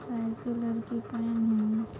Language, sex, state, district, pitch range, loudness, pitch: Hindi, female, Uttar Pradesh, Jalaun, 225-235 Hz, -31 LUFS, 230 Hz